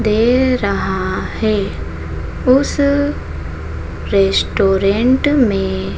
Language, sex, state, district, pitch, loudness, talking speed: Hindi, female, Madhya Pradesh, Dhar, 195 Hz, -16 LUFS, 60 wpm